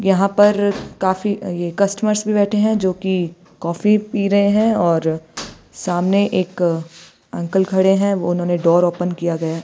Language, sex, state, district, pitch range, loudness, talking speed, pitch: Hindi, female, Himachal Pradesh, Shimla, 175-200 Hz, -18 LUFS, 155 wpm, 190 Hz